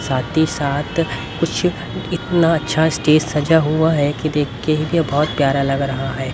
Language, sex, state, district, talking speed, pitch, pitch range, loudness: Hindi, male, Haryana, Rohtak, 190 wpm, 150 Hz, 140-160 Hz, -18 LUFS